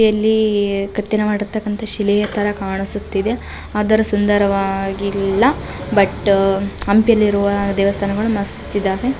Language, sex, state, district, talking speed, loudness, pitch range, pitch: Kannada, female, Karnataka, Chamarajanagar, 90 wpm, -17 LUFS, 200-215 Hz, 205 Hz